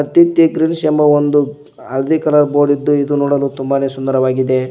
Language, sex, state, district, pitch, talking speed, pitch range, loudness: Kannada, male, Karnataka, Koppal, 145 Hz, 155 wpm, 135-150 Hz, -14 LUFS